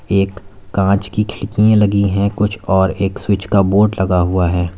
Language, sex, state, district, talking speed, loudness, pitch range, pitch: Hindi, male, Uttar Pradesh, Lalitpur, 190 wpm, -15 LUFS, 95-105 Hz, 100 Hz